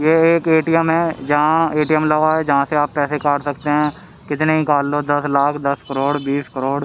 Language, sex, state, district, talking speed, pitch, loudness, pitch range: Hindi, male, Haryana, Rohtak, 265 wpm, 150 Hz, -17 LUFS, 145-155 Hz